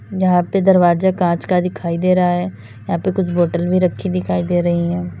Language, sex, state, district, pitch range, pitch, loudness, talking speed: Hindi, female, Uttar Pradesh, Lalitpur, 170-180 Hz, 175 Hz, -17 LUFS, 220 wpm